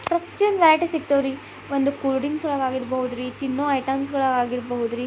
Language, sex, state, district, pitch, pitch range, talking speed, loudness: Kannada, female, Karnataka, Belgaum, 275 Hz, 255-290 Hz, 165 wpm, -23 LUFS